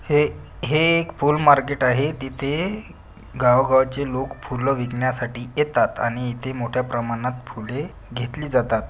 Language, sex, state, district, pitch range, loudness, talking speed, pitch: Marathi, male, Maharashtra, Pune, 120-145 Hz, -22 LUFS, 130 wpm, 130 Hz